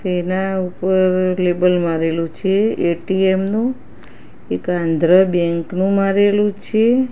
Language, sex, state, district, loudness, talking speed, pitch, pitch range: Gujarati, female, Gujarat, Gandhinagar, -17 LUFS, 110 wpm, 185 Hz, 175-200 Hz